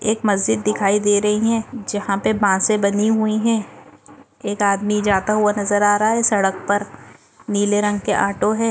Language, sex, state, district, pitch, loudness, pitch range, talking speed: Hindi, female, Maharashtra, Dhule, 205 Hz, -18 LUFS, 205-215 Hz, 170 wpm